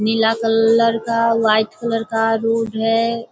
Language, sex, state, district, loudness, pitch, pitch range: Hindi, female, Bihar, Sitamarhi, -17 LUFS, 225 Hz, 225-230 Hz